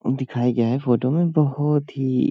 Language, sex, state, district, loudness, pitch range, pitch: Hindi, male, Uttar Pradesh, Hamirpur, -21 LUFS, 125-145 Hz, 130 Hz